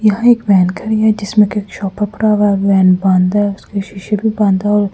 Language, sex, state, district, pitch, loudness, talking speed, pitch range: Hindi, female, Delhi, New Delhi, 205 Hz, -13 LUFS, 240 wpm, 195-210 Hz